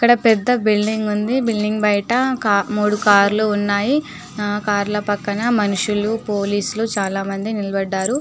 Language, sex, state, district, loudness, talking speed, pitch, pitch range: Telugu, female, Telangana, Nalgonda, -18 LUFS, 125 wpm, 210 Hz, 205-220 Hz